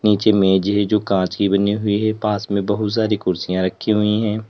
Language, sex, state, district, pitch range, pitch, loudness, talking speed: Hindi, male, Uttar Pradesh, Lalitpur, 100-105 Hz, 105 Hz, -18 LUFS, 225 wpm